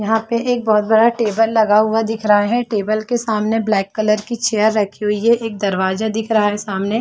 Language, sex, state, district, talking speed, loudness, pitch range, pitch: Hindi, female, Chhattisgarh, Balrampur, 230 wpm, -17 LUFS, 210-225 Hz, 220 Hz